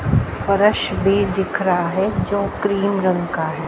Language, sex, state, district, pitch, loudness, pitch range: Hindi, female, Haryana, Jhajjar, 190 Hz, -19 LUFS, 170-200 Hz